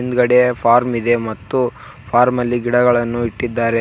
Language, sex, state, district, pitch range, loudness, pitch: Kannada, male, Karnataka, Koppal, 120-125 Hz, -16 LUFS, 120 Hz